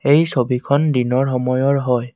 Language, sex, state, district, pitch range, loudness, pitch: Assamese, male, Assam, Kamrup Metropolitan, 125-140 Hz, -17 LUFS, 130 Hz